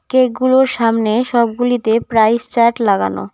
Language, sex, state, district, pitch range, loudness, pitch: Bengali, female, West Bengal, Cooch Behar, 220-245 Hz, -14 LUFS, 235 Hz